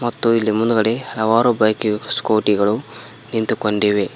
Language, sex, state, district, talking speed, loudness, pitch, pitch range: Kannada, male, Karnataka, Koppal, 115 wpm, -17 LUFS, 110 Hz, 105-115 Hz